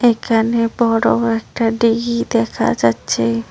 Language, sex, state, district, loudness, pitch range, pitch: Bengali, female, West Bengal, Cooch Behar, -16 LUFS, 225-235 Hz, 230 Hz